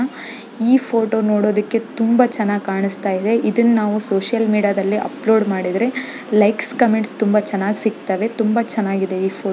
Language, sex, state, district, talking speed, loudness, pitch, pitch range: Kannada, female, Karnataka, Belgaum, 150 wpm, -18 LUFS, 220 Hz, 205-230 Hz